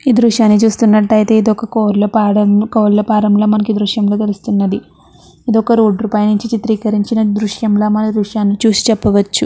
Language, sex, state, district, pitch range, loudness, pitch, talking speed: Telugu, female, Andhra Pradesh, Chittoor, 210-220 Hz, -13 LUFS, 215 Hz, 160 wpm